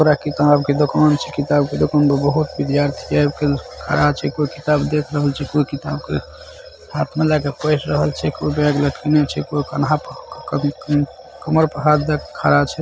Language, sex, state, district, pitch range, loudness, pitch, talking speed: Maithili, male, Bihar, Saharsa, 145-150 Hz, -18 LUFS, 145 Hz, 190 wpm